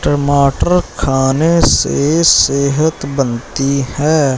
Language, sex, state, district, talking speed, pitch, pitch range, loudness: Hindi, male, Punjab, Fazilka, 80 wpm, 140 Hz, 135-155 Hz, -13 LUFS